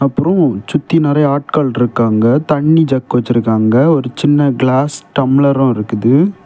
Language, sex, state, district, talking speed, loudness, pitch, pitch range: Tamil, male, Tamil Nadu, Kanyakumari, 120 wpm, -13 LUFS, 140 Hz, 125-150 Hz